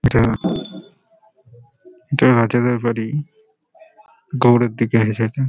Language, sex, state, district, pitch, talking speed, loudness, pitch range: Bengali, male, West Bengal, Malda, 125 Hz, 75 wpm, -18 LUFS, 115-165 Hz